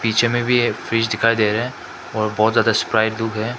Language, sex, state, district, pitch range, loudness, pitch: Hindi, male, Arunachal Pradesh, Papum Pare, 110-120 Hz, -19 LUFS, 115 Hz